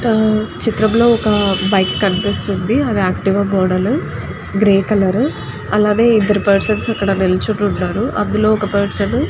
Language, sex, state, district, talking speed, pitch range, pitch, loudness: Telugu, female, Andhra Pradesh, Guntur, 135 wpm, 195-215 Hz, 205 Hz, -15 LUFS